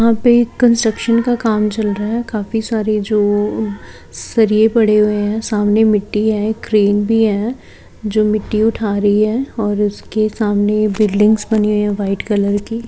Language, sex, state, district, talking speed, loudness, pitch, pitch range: Hindi, female, Haryana, Charkhi Dadri, 165 wpm, -15 LUFS, 215 Hz, 210-225 Hz